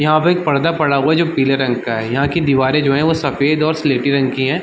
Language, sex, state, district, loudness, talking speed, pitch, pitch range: Hindi, male, Jharkhand, Jamtara, -15 LUFS, 285 wpm, 140 Hz, 135-155 Hz